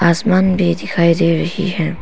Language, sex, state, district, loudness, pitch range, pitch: Hindi, female, Arunachal Pradesh, Papum Pare, -15 LUFS, 170-185 Hz, 170 Hz